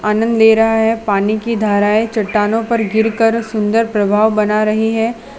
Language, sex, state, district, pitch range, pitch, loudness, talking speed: Hindi, female, Gujarat, Valsad, 210-225 Hz, 220 Hz, -14 LUFS, 165 wpm